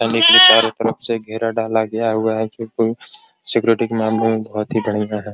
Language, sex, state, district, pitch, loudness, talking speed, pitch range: Hindi, male, Bihar, Araria, 115 Hz, -16 LUFS, 155 wpm, 110-115 Hz